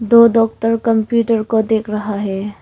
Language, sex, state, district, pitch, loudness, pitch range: Hindi, female, Arunachal Pradesh, Longding, 225 Hz, -15 LUFS, 215-230 Hz